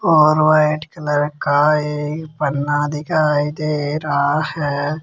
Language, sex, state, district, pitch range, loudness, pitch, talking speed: Hindi, male, Rajasthan, Jaipur, 145-155 Hz, -18 LUFS, 150 Hz, 120 wpm